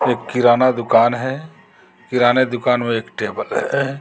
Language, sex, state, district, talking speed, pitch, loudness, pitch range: Hindi, male, Jharkhand, Garhwa, 150 wpm, 125 Hz, -17 LUFS, 120-130 Hz